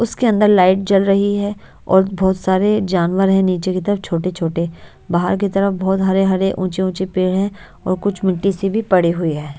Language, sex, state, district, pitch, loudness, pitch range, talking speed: Hindi, female, Odisha, Nuapada, 190 Hz, -17 LUFS, 185-195 Hz, 195 wpm